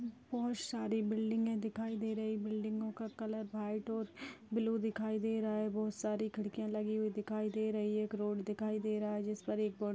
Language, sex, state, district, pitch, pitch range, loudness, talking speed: Kumaoni, female, Uttarakhand, Uttarkashi, 215 Hz, 215-220 Hz, -38 LUFS, 215 wpm